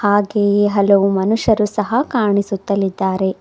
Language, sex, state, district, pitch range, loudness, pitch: Kannada, female, Karnataka, Bidar, 195-210 Hz, -16 LUFS, 205 Hz